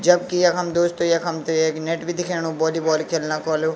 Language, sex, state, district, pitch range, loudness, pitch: Garhwali, male, Uttarakhand, Tehri Garhwal, 160-175 Hz, -21 LUFS, 165 Hz